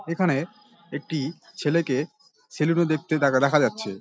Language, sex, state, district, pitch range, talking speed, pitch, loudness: Bengali, male, West Bengal, Dakshin Dinajpur, 140-175 Hz, 105 wpm, 155 Hz, -24 LUFS